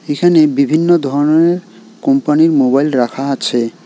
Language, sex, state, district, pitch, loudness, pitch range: Bengali, male, West Bengal, Alipurduar, 160 Hz, -13 LUFS, 140-180 Hz